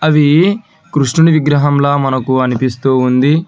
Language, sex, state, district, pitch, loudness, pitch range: Telugu, male, Telangana, Hyderabad, 145 Hz, -12 LUFS, 130-155 Hz